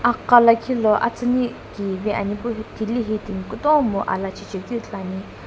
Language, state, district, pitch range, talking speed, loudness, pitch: Sumi, Nagaland, Dimapur, 195-240 Hz, 165 wpm, -21 LUFS, 220 Hz